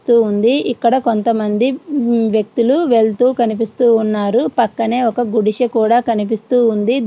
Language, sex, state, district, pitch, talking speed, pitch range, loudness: Telugu, female, Andhra Pradesh, Srikakulam, 235 Hz, 110 wpm, 220-245 Hz, -15 LUFS